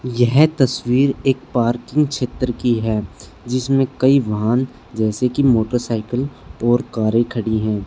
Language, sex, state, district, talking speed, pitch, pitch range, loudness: Hindi, male, Haryana, Charkhi Dadri, 130 wpm, 120 Hz, 110-130 Hz, -18 LUFS